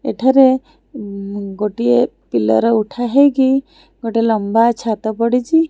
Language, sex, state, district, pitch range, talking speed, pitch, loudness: Odia, female, Odisha, Khordha, 210-265 Hz, 95 wpm, 230 Hz, -15 LUFS